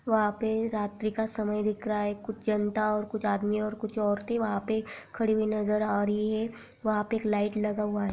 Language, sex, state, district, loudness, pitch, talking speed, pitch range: Hindi, female, Chhattisgarh, Raigarh, -29 LUFS, 215 Hz, 215 wpm, 210-220 Hz